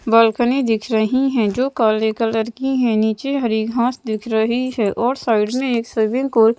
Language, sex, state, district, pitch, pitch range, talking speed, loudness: Hindi, female, Madhya Pradesh, Bhopal, 230 Hz, 220-255 Hz, 200 wpm, -18 LUFS